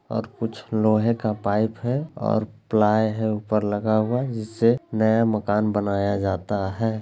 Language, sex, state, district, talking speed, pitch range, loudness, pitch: Hindi, male, Bihar, Lakhisarai, 155 wpm, 105-115 Hz, -23 LUFS, 110 Hz